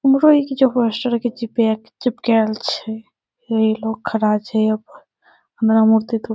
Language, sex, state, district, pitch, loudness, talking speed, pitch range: Maithili, female, Bihar, Saharsa, 225 Hz, -18 LUFS, 160 wpm, 220-245 Hz